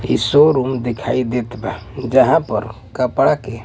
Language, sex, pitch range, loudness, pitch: Bhojpuri, male, 110-130 Hz, -17 LUFS, 125 Hz